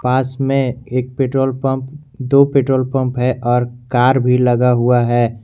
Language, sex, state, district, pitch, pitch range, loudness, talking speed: Hindi, male, Jharkhand, Garhwa, 130 Hz, 125-135 Hz, -16 LUFS, 165 wpm